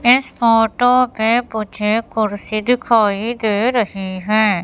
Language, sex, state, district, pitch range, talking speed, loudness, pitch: Hindi, female, Madhya Pradesh, Katni, 210-240 Hz, 115 wpm, -16 LUFS, 220 Hz